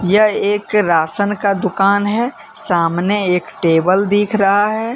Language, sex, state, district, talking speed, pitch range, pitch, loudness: Hindi, male, Jharkhand, Deoghar, 135 wpm, 185-210 Hz, 200 Hz, -15 LUFS